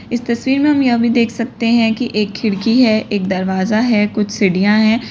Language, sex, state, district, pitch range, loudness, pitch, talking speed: Hindi, female, Uttar Pradesh, Lalitpur, 210-240 Hz, -15 LUFS, 225 Hz, 225 wpm